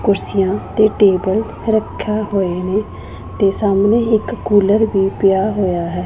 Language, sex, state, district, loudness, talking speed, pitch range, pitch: Punjabi, female, Punjab, Pathankot, -16 LUFS, 140 wpm, 195-215 Hz, 200 Hz